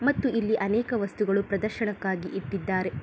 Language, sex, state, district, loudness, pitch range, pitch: Kannada, female, Karnataka, Mysore, -28 LUFS, 190-225 Hz, 205 Hz